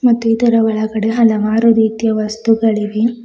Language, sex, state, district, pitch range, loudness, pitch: Kannada, female, Karnataka, Bidar, 220-230 Hz, -14 LUFS, 225 Hz